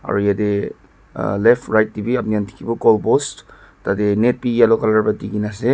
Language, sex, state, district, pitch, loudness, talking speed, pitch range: Nagamese, male, Nagaland, Dimapur, 110 Hz, -18 LUFS, 210 wpm, 105-115 Hz